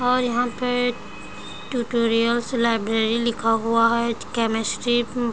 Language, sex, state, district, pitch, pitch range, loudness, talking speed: Hindi, female, Uttar Pradesh, Gorakhpur, 235 Hz, 230-245 Hz, -22 LUFS, 115 wpm